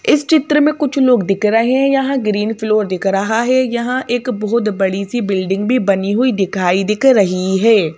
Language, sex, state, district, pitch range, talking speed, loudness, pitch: Hindi, female, Madhya Pradesh, Bhopal, 195-255 Hz, 205 wpm, -15 LUFS, 220 Hz